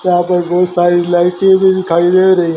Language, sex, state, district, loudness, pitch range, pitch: Hindi, male, Haryana, Rohtak, -11 LUFS, 175-185 Hz, 180 Hz